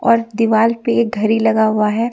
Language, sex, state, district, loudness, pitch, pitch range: Hindi, female, Bihar, West Champaran, -15 LUFS, 225 Hz, 220-230 Hz